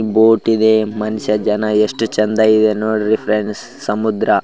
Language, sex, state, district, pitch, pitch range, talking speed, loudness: Kannada, male, Karnataka, Raichur, 110 Hz, 105-110 Hz, 150 wpm, -15 LUFS